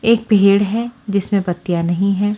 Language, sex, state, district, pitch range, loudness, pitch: Hindi, female, Haryana, Charkhi Dadri, 195-220 Hz, -16 LUFS, 200 Hz